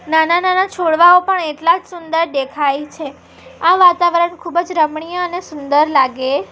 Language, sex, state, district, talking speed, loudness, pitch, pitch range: Gujarati, female, Gujarat, Valsad, 145 wpm, -14 LUFS, 330 Hz, 295-350 Hz